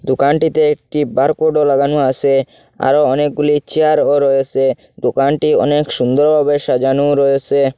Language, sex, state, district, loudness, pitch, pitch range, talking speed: Bengali, male, Assam, Hailakandi, -14 LUFS, 145 Hz, 135-150 Hz, 110 wpm